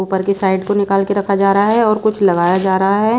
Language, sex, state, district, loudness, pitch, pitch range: Hindi, female, Bihar, West Champaran, -14 LUFS, 200 Hz, 190-205 Hz